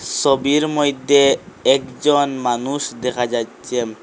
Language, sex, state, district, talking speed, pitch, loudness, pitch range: Bengali, male, Assam, Hailakandi, 90 wpm, 135 Hz, -18 LUFS, 125-145 Hz